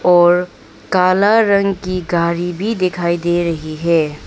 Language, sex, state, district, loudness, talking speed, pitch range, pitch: Hindi, female, Arunachal Pradesh, Papum Pare, -15 LUFS, 140 wpm, 170-185 Hz, 175 Hz